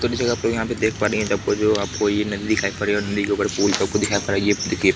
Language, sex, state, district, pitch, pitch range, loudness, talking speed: Hindi, male, Bihar, Kishanganj, 105 Hz, 100-110 Hz, -21 LUFS, 290 wpm